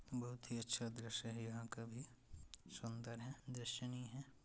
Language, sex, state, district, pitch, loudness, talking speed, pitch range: Hindi, male, Uttar Pradesh, Etah, 120 Hz, -48 LUFS, 160 wpm, 115-125 Hz